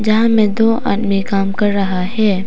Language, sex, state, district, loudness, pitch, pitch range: Hindi, female, Arunachal Pradesh, Papum Pare, -15 LUFS, 205 Hz, 195-220 Hz